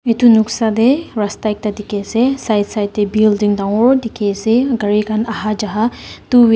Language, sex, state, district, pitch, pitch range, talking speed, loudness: Nagamese, female, Nagaland, Dimapur, 215 Hz, 210-235 Hz, 185 wpm, -15 LUFS